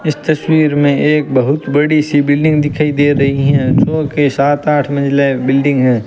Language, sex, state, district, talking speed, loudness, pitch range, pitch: Hindi, male, Rajasthan, Bikaner, 190 wpm, -12 LUFS, 140-150 Hz, 145 Hz